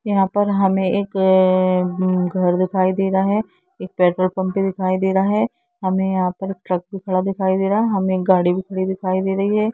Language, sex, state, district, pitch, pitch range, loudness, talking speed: Hindi, female, Jharkhand, Jamtara, 190 Hz, 185-195 Hz, -19 LUFS, 220 wpm